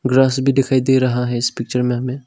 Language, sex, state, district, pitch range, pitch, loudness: Hindi, male, Arunachal Pradesh, Longding, 125-135 Hz, 130 Hz, -17 LUFS